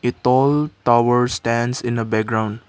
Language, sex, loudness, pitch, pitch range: English, male, -18 LUFS, 120 Hz, 115-125 Hz